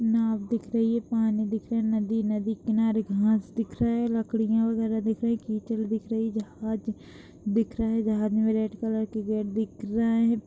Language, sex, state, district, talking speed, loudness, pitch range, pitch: Hindi, female, Chhattisgarh, Kabirdham, 205 wpm, -27 LUFS, 215-225 Hz, 220 Hz